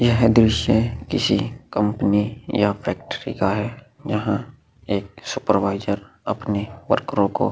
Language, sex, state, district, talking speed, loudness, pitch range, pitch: Hindi, male, Chhattisgarh, Korba, 120 wpm, -22 LUFS, 100-115 Hz, 105 Hz